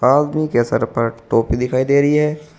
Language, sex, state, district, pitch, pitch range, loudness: Hindi, male, Uttar Pradesh, Saharanpur, 135 Hz, 120-150 Hz, -17 LUFS